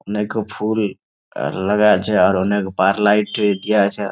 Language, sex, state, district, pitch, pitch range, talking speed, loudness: Bengali, male, West Bengal, Jalpaiguri, 105 Hz, 95-105 Hz, 175 wpm, -17 LUFS